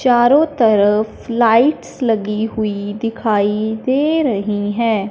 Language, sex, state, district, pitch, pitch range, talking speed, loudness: Hindi, male, Punjab, Fazilka, 225 Hz, 210-245 Hz, 105 wpm, -16 LUFS